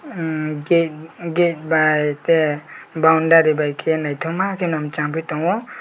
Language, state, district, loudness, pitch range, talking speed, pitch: Kokborok, Tripura, West Tripura, -19 LUFS, 150-165 Hz, 115 wpm, 160 Hz